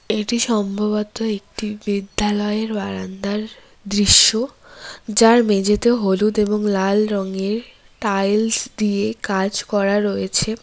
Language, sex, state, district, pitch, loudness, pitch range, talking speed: Bengali, female, West Bengal, Cooch Behar, 210 Hz, -19 LUFS, 200-215 Hz, 95 wpm